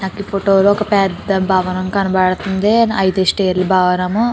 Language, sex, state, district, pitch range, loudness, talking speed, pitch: Telugu, female, Andhra Pradesh, Chittoor, 185-200 Hz, -15 LUFS, 150 wpm, 190 Hz